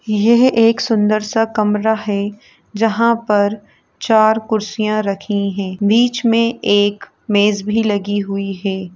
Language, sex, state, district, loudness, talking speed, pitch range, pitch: Hindi, female, Uttar Pradesh, Etah, -16 LUFS, 140 wpm, 205-225 Hz, 215 Hz